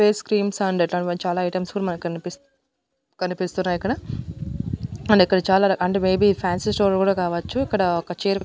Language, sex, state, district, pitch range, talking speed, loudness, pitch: Telugu, female, Andhra Pradesh, Annamaya, 180-205 Hz, 175 wpm, -22 LUFS, 190 Hz